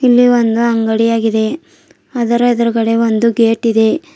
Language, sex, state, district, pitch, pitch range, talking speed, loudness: Kannada, female, Karnataka, Bidar, 230 Hz, 225-245 Hz, 130 wpm, -13 LUFS